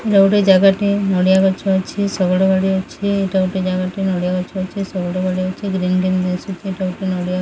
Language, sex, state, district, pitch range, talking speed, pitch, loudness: Odia, female, Odisha, Sambalpur, 185-195 Hz, 195 wpm, 190 Hz, -17 LUFS